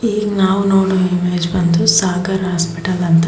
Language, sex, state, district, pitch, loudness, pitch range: Kannada, female, Karnataka, Bangalore, 185 Hz, -15 LUFS, 175-190 Hz